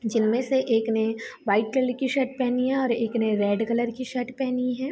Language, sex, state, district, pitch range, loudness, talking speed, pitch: Hindi, female, Bihar, Begusarai, 225-260 Hz, -25 LUFS, 230 wpm, 245 Hz